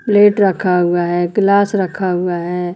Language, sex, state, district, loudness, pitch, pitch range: Hindi, female, Uttar Pradesh, Lucknow, -15 LUFS, 180 Hz, 175-200 Hz